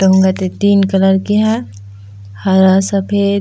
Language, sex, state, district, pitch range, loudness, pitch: Chhattisgarhi, female, Chhattisgarh, Raigarh, 185-200 Hz, -13 LUFS, 190 Hz